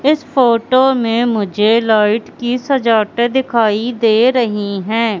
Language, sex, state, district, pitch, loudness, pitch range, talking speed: Hindi, female, Madhya Pradesh, Katni, 230 Hz, -14 LUFS, 215-250 Hz, 125 wpm